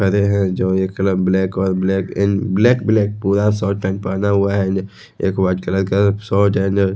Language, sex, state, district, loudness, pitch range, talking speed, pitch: Hindi, male, Odisha, Khordha, -17 LUFS, 95-100 Hz, 205 wpm, 95 Hz